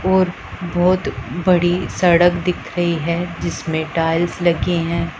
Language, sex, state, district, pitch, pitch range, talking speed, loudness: Hindi, female, Punjab, Pathankot, 175 Hz, 170-180 Hz, 125 wpm, -18 LUFS